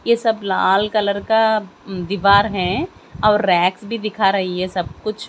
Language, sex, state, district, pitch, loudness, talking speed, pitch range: Hindi, female, Haryana, Jhajjar, 200 Hz, -18 LUFS, 160 wpm, 190-215 Hz